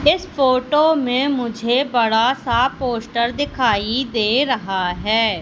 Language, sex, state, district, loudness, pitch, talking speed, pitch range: Hindi, female, Madhya Pradesh, Katni, -18 LUFS, 245 Hz, 120 wpm, 225-270 Hz